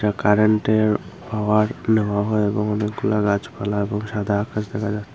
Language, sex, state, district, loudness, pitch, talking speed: Bengali, female, Tripura, Unakoti, -21 LUFS, 105 Hz, 140 wpm